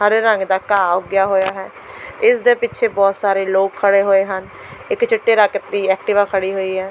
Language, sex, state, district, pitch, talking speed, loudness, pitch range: Punjabi, female, Delhi, New Delhi, 200 Hz, 210 wpm, -16 LUFS, 195-220 Hz